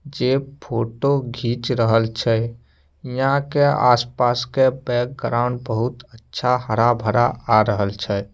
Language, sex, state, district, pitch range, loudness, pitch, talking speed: Maithili, male, Bihar, Samastipur, 115-130 Hz, -20 LUFS, 120 Hz, 115 wpm